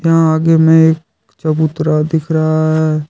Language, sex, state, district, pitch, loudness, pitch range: Hindi, male, Jharkhand, Deoghar, 160 Hz, -13 LUFS, 155-160 Hz